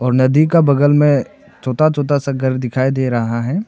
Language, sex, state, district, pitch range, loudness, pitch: Hindi, male, Arunachal Pradesh, Papum Pare, 130-145 Hz, -15 LUFS, 135 Hz